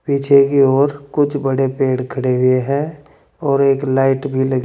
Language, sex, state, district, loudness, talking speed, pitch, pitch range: Hindi, male, Uttar Pradesh, Saharanpur, -16 LUFS, 180 wpm, 135 Hz, 130-140 Hz